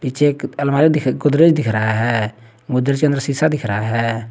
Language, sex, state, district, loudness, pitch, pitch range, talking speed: Hindi, male, Jharkhand, Garhwa, -17 LUFS, 130 Hz, 115-145 Hz, 210 wpm